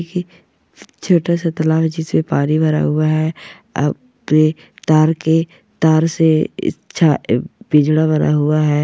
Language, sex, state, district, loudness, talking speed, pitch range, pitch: Hindi, male, Maharashtra, Solapur, -16 LUFS, 150 wpm, 155-165 Hz, 160 Hz